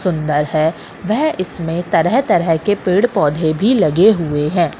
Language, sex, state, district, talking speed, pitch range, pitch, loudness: Hindi, female, Madhya Pradesh, Katni, 135 wpm, 160-205 Hz, 175 Hz, -15 LUFS